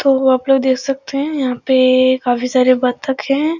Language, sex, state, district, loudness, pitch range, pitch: Hindi, female, Bihar, Araria, -15 LUFS, 255-275 Hz, 260 Hz